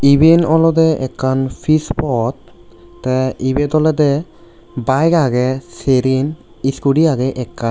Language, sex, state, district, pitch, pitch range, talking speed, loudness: Chakma, male, Tripura, West Tripura, 130 Hz, 125-155 Hz, 110 wpm, -15 LUFS